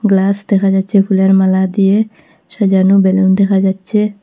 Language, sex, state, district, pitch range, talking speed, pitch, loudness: Bengali, female, Assam, Hailakandi, 190-200 Hz, 140 wpm, 195 Hz, -12 LUFS